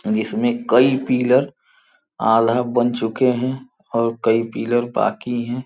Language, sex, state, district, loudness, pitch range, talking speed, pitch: Hindi, male, Uttar Pradesh, Gorakhpur, -19 LUFS, 120-140 Hz, 140 wpm, 125 Hz